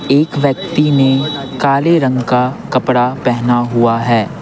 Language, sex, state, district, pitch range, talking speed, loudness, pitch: Hindi, male, Bihar, Patna, 125-140 Hz, 135 wpm, -13 LUFS, 130 Hz